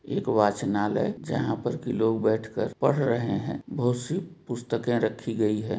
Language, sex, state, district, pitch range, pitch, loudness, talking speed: Hindi, male, Jharkhand, Jamtara, 110-125 Hz, 115 Hz, -27 LUFS, 175 wpm